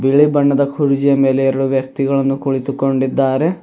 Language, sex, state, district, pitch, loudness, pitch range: Kannada, male, Karnataka, Bidar, 135 Hz, -15 LUFS, 135-140 Hz